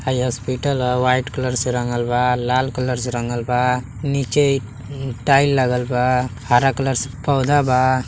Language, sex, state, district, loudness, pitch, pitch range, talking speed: Bhojpuri, male, Uttar Pradesh, Deoria, -19 LUFS, 125 Hz, 125-135 Hz, 155 wpm